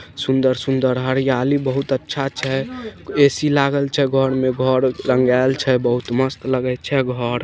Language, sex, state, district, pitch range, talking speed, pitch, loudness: Maithili, male, Bihar, Samastipur, 130-140 Hz, 145 wpm, 130 Hz, -18 LUFS